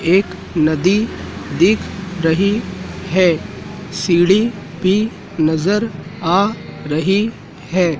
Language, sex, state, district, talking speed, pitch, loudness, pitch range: Hindi, male, Madhya Pradesh, Dhar, 85 wpm, 185 Hz, -17 LUFS, 165-200 Hz